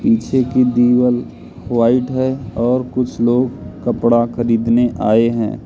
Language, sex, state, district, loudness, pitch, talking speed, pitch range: Hindi, male, Madhya Pradesh, Katni, -16 LUFS, 120 Hz, 125 wpm, 115-125 Hz